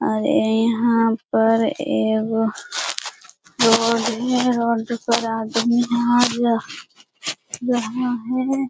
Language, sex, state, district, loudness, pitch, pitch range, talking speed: Hindi, female, Bihar, Lakhisarai, -20 LUFS, 230 Hz, 225-245 Hz, 85 wpm